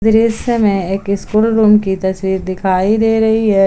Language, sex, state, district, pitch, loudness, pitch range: Hindi, female, Jharkhand, Palamu, 210 Hz, -14 LUFS, 190-220 Hz